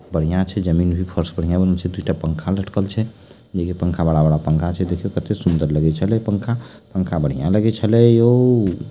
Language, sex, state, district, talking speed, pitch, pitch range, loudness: Maithili, male, Bihar, Supaul, 190 wpm, 90 Hz, 85-105 Hz, -19 LUFS